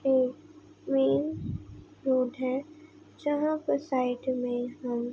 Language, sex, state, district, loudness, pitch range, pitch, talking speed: Hindi, female, Uttar Pradesh, Budaun, -30 LUFS, 240-280 Hz, 255 Hz, 115 wpm